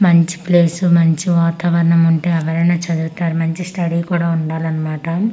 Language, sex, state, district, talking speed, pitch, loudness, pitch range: Telugu, female, Andhra Pradesh, Manyam, 125 wpm, 170 Hz, -16 LUFS, 165-175 Hz